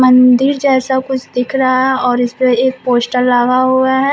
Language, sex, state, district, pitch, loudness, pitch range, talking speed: Hindi, female, Uttar Pradesh, Shamli, 255 Hz, -12 LUFS, 250-265 Hz, 205 wpm